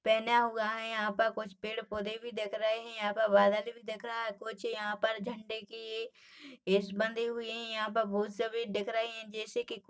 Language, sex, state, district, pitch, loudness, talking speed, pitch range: Hindi, female, Chhattisgarh, Rajnandgaon, 225 Hz, -34 LUFS, 225 wpm, 215-230 Hz